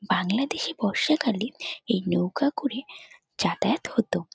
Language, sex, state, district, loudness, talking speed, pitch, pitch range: Bengali, female, West Bengal, North 24 Parganas, -26 LUFS, 95 wpm, 255 Hz, 195-295 Hz